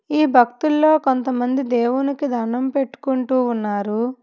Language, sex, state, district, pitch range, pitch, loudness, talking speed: Telugu, female, Telangana, Hyderabad, 240-280 Hz, 260 Hz, -19 LUFS, 100 wpm